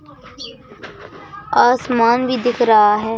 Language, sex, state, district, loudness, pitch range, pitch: Hindi, male, Madhya Pradesh, Bhopal, -15 LUFS, 225-260 Hz, 245 Hz